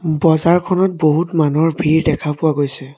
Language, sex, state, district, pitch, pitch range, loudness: Assamese, male, Assam, Sonitpur, 160 Hz, 155-170 Hz, -15 LUFS